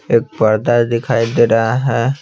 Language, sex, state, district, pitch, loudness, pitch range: Hindi, male, Bihar, Patna, 115 Hz, -15 LUFS, 115-125 Hz